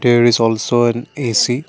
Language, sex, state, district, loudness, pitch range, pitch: English, male, Assam, Kamrup Metropolitan, -15 LUFS, 115-125 Hz, 120 Hz